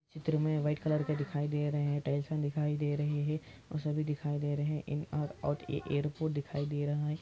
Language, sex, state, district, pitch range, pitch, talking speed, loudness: Hindi, male, Andhra Pradesh, Anantapur, 145-150 Hz, 150 Hz, 185 wpm, -34 LUFS